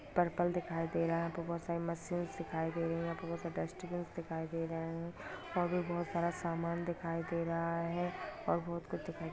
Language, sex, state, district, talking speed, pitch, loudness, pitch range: Hindi, female, Bihar, Muzaffarpur, 210 wpm, 170 Hz, -38 LUFS, 165-175 Hz